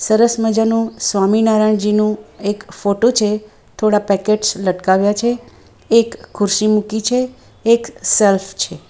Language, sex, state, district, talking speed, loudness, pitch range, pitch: Gujarati, female, Gujarat, Valsad, 115 wpm, -16 LUFS, 205-225 Hz, 215 Hz